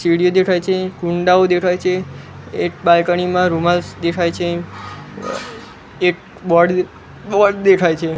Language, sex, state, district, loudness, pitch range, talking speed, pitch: Gujarati, male, Gujarat, Gandhinagar, -16 LUFS, 170-180 Hz, 125 wpm, 175 Hz